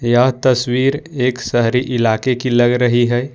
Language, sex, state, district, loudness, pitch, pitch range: Hindi, male, Jharkhand, Ranchi, -15 LUFS, 125 Hz, 120-130 Hz